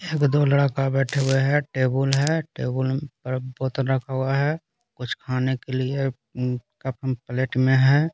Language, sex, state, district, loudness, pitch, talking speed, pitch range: Hindi, male, Bihar, Patna, -23 LUFS, 135 Hz, 160 wpm, 130-140 Hz